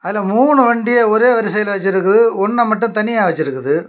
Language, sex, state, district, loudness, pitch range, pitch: Tamil, male, Tamil Nadu, Kanyakumari, -13 LUFS, 200-235 Hz, 220 Hz